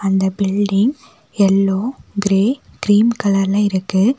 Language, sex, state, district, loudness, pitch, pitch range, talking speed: Tamil, female, Tamil Nadu, Nilgiris, -16 LUFS, 200 Hz, 195-215 Hz, 100 wpm